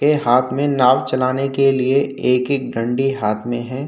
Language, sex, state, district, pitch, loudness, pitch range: Hindi, male, Uttar Pradesh, Hamirpur, 130 Hz, -18 LUFS, 125-135 Hz